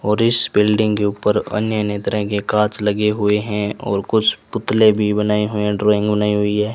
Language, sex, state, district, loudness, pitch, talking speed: Hindi, male, Rajasthan, Bikaner, -17 LUFS, 105 Hz, 215 wpm